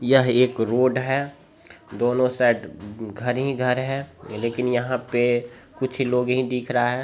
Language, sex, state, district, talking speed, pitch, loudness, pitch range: Hindi, male, Bihar, Jamui, 170 wpm, 125 Hz, -23 LUFS, 120-130 Hz